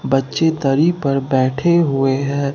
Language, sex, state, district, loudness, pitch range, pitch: Hindi, male, Bihar, Katihar, -17 LUFS, 135-160 Hz, 140 Hz